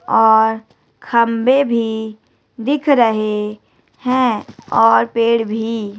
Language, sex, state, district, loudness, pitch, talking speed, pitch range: Hindi, female, Chhattisgarh, Raipur, -16 LUFS, 225 Hz, 90 wpm, 215-235 Hz